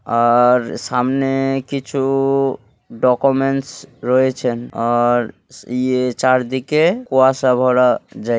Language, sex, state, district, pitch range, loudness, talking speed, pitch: Bengali, male, West Bengal, Malda, 125-135 Hz, -17 LUFS, 80 wpm, 130 Hz